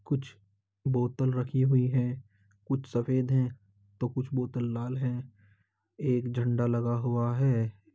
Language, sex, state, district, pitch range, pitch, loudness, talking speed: Hindi, male, Uttar Pradesh, Etah, 115-130 Hz, 125 Hz, -30 LUFS, 135 wpm